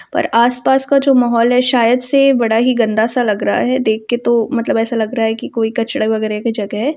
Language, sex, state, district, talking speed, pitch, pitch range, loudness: Hindi, female, Uttar Pradesh, Varanasi, 240 wpm, 235 Hz, 225-250 Hz, -14 LUFS